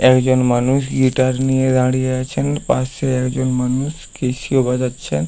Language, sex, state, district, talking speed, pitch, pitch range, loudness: Bengali, male, West Bengal, Paschim Medinipur, 135 wpm, 130 Hz, 125-130 Hz, -17 LUFS